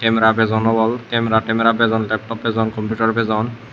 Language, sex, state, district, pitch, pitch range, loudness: Chakma, male, Tripura, West Tripura, 115 Hz, 110-115 Hz, -18 LUFS